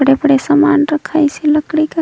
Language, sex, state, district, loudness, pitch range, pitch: Surgujia, female, Chhattisgarh, Sarguja, -13 LUFS, 295-310 Hz, 300 Hz